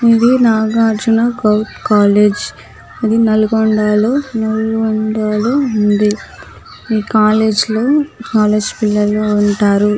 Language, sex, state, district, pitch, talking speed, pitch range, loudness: Telugu, female, Telangana, Nalgonda, 215 Hz, 70 wpm, 210-225 Hz, -13 LUFS